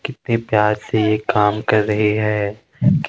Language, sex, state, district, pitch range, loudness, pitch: Hindi, male, Himachal Pradesh, Shimla, 105-115 Hz, -18 LUFS, 110 Hz